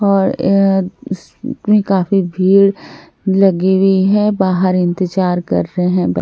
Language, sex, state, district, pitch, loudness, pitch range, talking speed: Hindi, female, Bihar, Katihar, 190 Hz, -14 LUFS, 185-195 Hz, 125 wpm